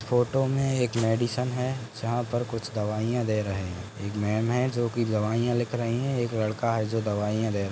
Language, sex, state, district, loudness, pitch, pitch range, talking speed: Hindi, male, Uttar Pradesh, Gorakhpur, -27 LUFS, 115 Hz, 110-120 Hz, 225 wpm